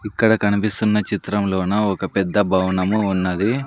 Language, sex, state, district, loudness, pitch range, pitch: Telugu, male, Andhra Pradesh, Sri Satya Sai, -19 LUFS, 95-105 Hz, 105 Hz